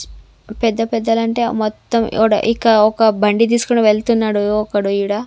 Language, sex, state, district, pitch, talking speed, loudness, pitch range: Telugu, female, Andhra Pradesh, Sri Satya Sai, 220 Hz, 135 wpm, -15 LUFS, 210-230 Hz